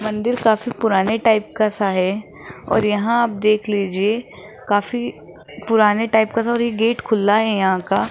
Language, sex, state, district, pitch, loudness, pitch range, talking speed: Hindi, female, Rajasthan, Jaipur, 215 Hz, -18 LUFS, 205-225 Hz, 180 wpm